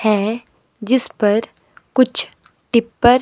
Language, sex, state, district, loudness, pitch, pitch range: Hindi, female, Himachal Pradesh, Shimla, -18 LUFS, 230 Hz, 215-250 Hz